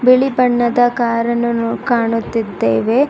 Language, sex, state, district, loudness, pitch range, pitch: Kannada, female, Karnataka, Bangalore, -15 LUFS, 230-245 Hz, 235 Hz